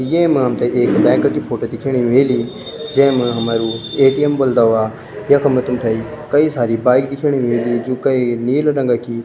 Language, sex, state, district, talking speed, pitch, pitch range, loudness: Garhwali, male, Uttarakhand, Tehri Garhwal, 180 wpm, 125 Hz, 120-135 Hz, -15 LUFS